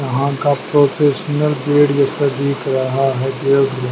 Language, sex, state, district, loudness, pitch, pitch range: Hindi, male, Madhya Pradesh, Dhar, -16 LUFS, 140 Hz, 135-145 Hz